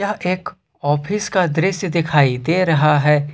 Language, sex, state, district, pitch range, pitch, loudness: Hindi, male, Jharkhand, Ranchi, 150-185 Hz, 170 Hz, -17 LUFS